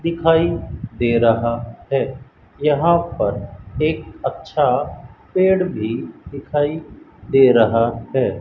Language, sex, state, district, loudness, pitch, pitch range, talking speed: Hindi, male, Rajasthan, Bikaner, -19 LUFS, 125 Hz, 115-155 Hz, 100 wpm